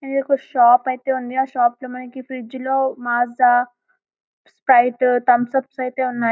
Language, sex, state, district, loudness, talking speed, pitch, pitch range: Telugu, female, Telangana, Karimnagar, -18 LUFS, 135 wpm, 255 Hz, 245-265 Hz